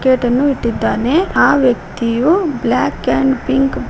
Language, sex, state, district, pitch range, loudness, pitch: Kannada, female, Karnataka, Koppal, 240-275 Hz, -15 LUFS, 260 Hz